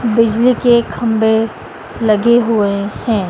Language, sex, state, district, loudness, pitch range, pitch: Hindi, female, Madhya Pradesh, Dhar, -14 LUFS, 215-235 Hz, 225 Hz